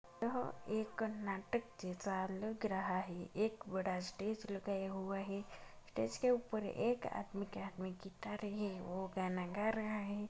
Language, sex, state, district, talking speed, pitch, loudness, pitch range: Hindi, male, Uttar Pradesh, Muzaffarnagar, 165 wpm, 200 Hz, -42 LUFS, 190-215 Hz